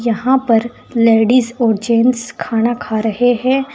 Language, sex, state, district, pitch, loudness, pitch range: Hindi, female, Uttar Pradesh, Saharanpur, 235 Hz, -15 LUFS, 225-250 Hz